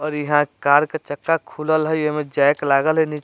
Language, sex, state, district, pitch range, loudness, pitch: Bajjika, male, Bihar, Vaishali, 145-155 Hz, -19 LUFS, 150 Hz